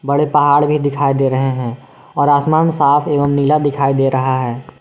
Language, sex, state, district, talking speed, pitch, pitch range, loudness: Hindi, male, Jharkhand, Garhwa, 200 wpm, 140 Hz, 135-145 Hz, -14 LUFS